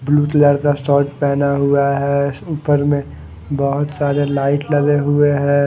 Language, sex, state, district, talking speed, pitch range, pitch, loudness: Hindi, male, Haryana, Rohtak, 160 wpm, 140-145 Hz, 140 Hz, -16 LUFS